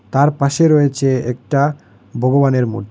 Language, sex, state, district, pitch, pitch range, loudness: Bengali, male, Assam, Hailakandi, 135 Hz, 125-145 Hz, -15 LUFS